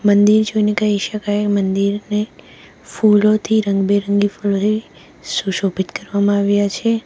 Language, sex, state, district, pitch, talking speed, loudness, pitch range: Gujarati, female, Gujarat, Valsad, 205 Hz, 100 wpm, -17 LUFS, 200-215 Hz